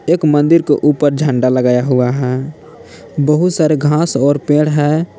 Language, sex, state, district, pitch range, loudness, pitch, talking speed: Hindi, male, Jharkhand, Palamu, 135-155 Hz, -13 LUFS, 150 Hz, 160 wpm